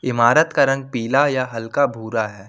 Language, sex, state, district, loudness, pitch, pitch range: Hindi, male, Jharkhand, Ranchi, -18 LUFS, 125 Hz, 115-140 Hz